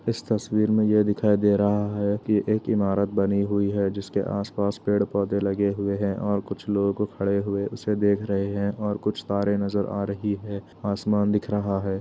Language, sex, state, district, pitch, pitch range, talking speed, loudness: Hindi, male, Uttar Pradesh, Etah, 100 Hz, 100-105 Hz, 200 wpm, -25 LUFS